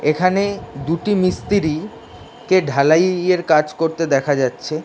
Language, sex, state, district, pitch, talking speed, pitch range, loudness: Bengali, male, West Bengal, Dakshin Dinajpur, 165 Hz, 125 wpm, 150-185 Hz, -18 LUFS